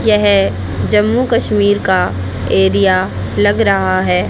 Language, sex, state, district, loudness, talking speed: Hindi, female, Haryana, Jhajjar, -13 LUFS, 110 wpm